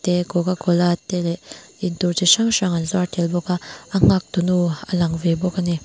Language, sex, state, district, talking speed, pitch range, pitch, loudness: Mizo, female, Mizoram, Aizawl, 245 wpm, 175-185 Hz, 175 Hz, -20 LUFS